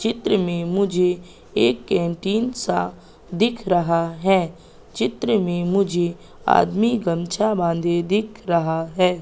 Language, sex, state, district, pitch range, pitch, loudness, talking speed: Hindi, female, Madhya Pradesh, Katni, 170-205 Hz, 180 Hz, -21 LUFS, 115 wpm